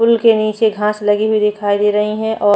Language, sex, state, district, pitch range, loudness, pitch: Hindi, female, Chhattisgarh, Bastar, 210-220 Hz, -15 LUFS, 210 Hz